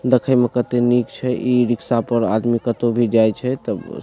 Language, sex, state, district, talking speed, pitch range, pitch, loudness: Maithili, male, Bihar, Supaul, 225 wpm, 115-125 Hz, 120 Hz, -18 LUFS